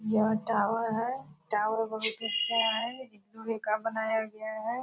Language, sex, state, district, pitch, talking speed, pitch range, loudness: Hindi, female, Bihar, Purnia, 220 Hz, 150 wpm, 215-225 Hz, -30 LUFS